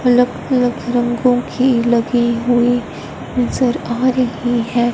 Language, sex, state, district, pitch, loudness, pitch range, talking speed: Hindi, female, Punjab, Fazilka, 245 Hz, -16 LUFS, 240-250 Hz, 120 wpm